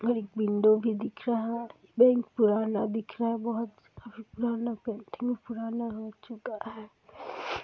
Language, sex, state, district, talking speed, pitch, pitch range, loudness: Hindi, female, Bihar, Araria, 165 wpm, 230 Hz, 215-235 Hz, -29 LUFS